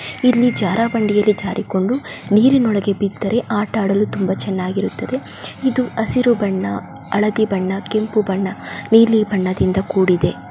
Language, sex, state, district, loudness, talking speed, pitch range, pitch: Kannada, female, Karnataka, Bellary, -18 LUFS, 110 wpm, 195-230 Hz, 210 Hz